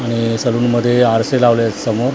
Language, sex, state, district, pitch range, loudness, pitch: Marathi, male, Maharashtra, Mumbai Suburban, 115-120 Hz, -15 LUFS, 120 Hz